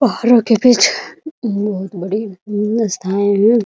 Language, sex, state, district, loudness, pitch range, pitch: Hindi, female, Bihar, Muzaffarpur, -15 LUFS, 200-235 Hz, 210 Hz